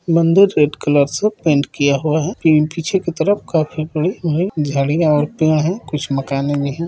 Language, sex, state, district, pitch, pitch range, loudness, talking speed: Hindi, male, Chhattisgarh, Rajnandgaon, 155 Hz, 145-170 Hz, -17 LUFS, 190 wpm